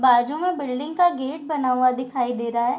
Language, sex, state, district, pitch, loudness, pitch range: Hindi, female, Bihar, Darbhanga, 260 Hz, -22 LUFS, 250-300 Hz